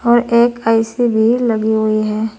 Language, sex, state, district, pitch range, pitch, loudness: Hindi, female, Uttar Pradesh, Saharanpur, 220-235 Hz, 225 Hz, -14 LUFS